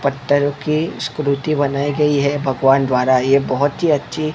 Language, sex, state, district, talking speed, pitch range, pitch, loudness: Hindi, male, Maharashtra, Mumbai Suburban, 165 wpm, 135-150 Hz, 140 Hz, -17 LUFS